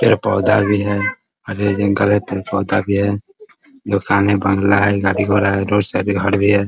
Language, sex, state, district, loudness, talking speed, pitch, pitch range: Hindi, male, Bihar, Muzaffarpur, -16 LUFS, 190 wpm, 100 Hz, 100-105 Hz